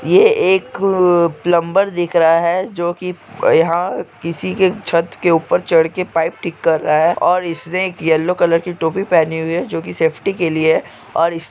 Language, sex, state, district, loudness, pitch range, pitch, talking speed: Hindi, male, Andhra Pradesh, Chittoor, -16 LUFS, 165-185 Hz, 170 Hz, 175 wpm